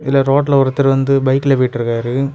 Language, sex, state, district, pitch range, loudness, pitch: Tamil, male, Tamil Nadu, Kanyakumari, 130-140 Hz, -14 LUFS, 135 Hz